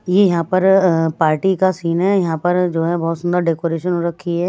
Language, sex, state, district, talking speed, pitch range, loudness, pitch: Hindi, male, Bihar, West Champaran, 240 wpm, 165-185 Hz, -17 LUFS, 175 Hz